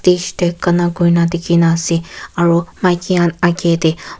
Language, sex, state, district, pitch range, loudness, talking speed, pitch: Nagamese, female, Nagaland, Kohima, 170-175 Hz, -15 LUFS, 155 wpm, 175 Hz